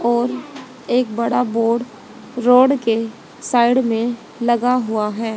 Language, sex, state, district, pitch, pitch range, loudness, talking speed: Hindi, female, Haryana, Rohtak, 240 Hz, 230-250 Hz, -18 LUFS, 125 wpm